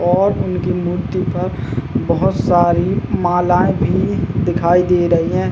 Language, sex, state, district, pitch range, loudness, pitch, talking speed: Hindi, male, Uttar Pradesh, Jalaun, 170-180 Hz, -16 LUFS, 175 Hz, 130 wpm